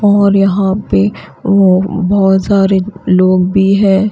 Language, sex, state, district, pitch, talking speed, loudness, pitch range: Hindi, female, Bihar, Katihar, 195 Hz, 130 wpm, -11 LUFS, 185-200 Hz